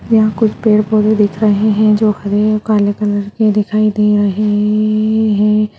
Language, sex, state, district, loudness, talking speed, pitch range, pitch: Hindi, female, Bihar, Jahanabad, -13 LUFS, 175 wpm, 210-215 Hz, 210 Hz